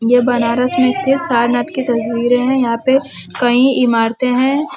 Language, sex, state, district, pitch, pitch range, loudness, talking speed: Hindi, female, Uttar Pradesh, Varanasi, 245 Hz, 240-260 Hz, -14 LUFS, 165 wpm